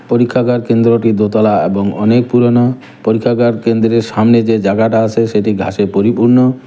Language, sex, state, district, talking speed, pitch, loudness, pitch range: Bengali, male, West Bengal, Cooch Behar, 135 wpm, 115 Hz, -12 LUFS, 110-120 Hz